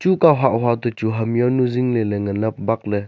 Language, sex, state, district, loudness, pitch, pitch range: Wancho, male, Arunachal Pradesh, Longding, -19 LUFS, 115 Hz, 110-125 Hz